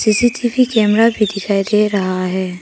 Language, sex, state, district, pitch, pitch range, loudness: Hindi, female, Arunachal Pradesh, Papum Pare, 210 Hz, 195-230 Hz, -15 LUFS